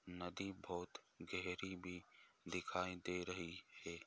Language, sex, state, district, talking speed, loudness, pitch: Hindi, male, Andhra Pradesh, Visakhapatnam, 120 wpm, -48 LUFS, 90 Hz